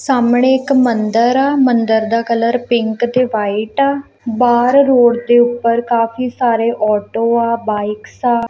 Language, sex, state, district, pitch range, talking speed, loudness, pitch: Punjabi, female, Punjab, Kapurthala, 230-250 Hz, 150 wpm, -14 LUFS, 235 Hz